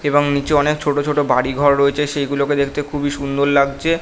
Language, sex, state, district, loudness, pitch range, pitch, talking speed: Bengali, male, West Bengal, North 24 Parganas, -17 LUFS, 140-145 Hz, 145 Hz, 195 wpm